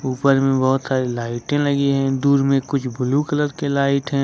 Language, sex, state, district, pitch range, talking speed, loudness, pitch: Hindi, male, Jharkhand, Ranchi, 130-140 Hz, 200 wpm, -19 LUFS, 135 Hz